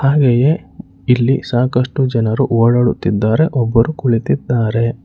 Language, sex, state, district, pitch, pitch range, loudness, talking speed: Kannada, male, Karnataka, Bangalore, 120 Hz, 115-135 Hz, -15 LUFS, 85 wpm